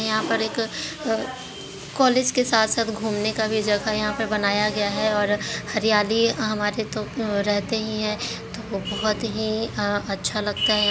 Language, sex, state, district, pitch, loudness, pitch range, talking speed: Hindi, female, Bihar, Jahanabad, 215 Hz, -23 LUFS, 210-220 Hz, 165 wpm